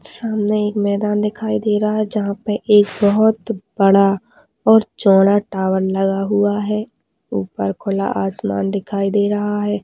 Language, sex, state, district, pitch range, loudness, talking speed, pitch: Hindi, female, West Bengal, Dakshin Dinajpur, 195-210 Hz, -17 LUFS, 150 wpm, 205 Hz